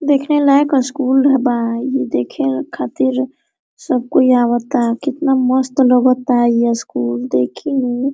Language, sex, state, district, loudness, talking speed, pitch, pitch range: Hindi, female, Jharkhand, Sahebganj, -15 LUFS, 125 wpm, 255 Hz, 235-275 Hz